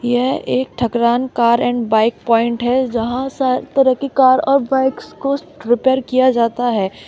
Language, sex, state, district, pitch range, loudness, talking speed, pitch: Hindi, female, Uttar Pradesh, Shamli, 235-265 Hz, -16 LUFS, 180 wpm, 250 Hz